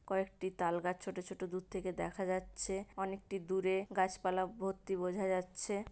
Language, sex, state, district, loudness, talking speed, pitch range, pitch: Bengali, female, West Bengal, Paschim Medinipur, -39 LUFS, 140 wpm, 185-195 Hz, 190 Hz